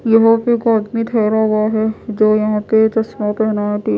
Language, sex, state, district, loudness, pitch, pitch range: Hindi, female, Odisha, Malkangiri, -15 LUFS, 220 Hz, 215-225 Hz